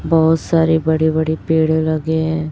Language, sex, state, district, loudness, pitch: Hindi, female, Chhattisgarh, Raipur, -16 LUFS, 160 Hz